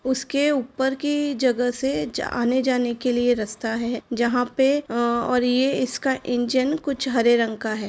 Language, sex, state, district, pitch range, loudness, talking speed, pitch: Hindi, female, Uttar Pradesh, Jalaun, 240-265 Hz, -22 LUFS, 180 wpm, 250 Hz